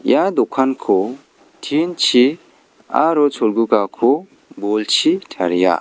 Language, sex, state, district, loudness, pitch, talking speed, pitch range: Garo, male, Meghalaya, West Garo Hills, -17 LUFS, 130 Hz, 70 wpm, 105-155 Hz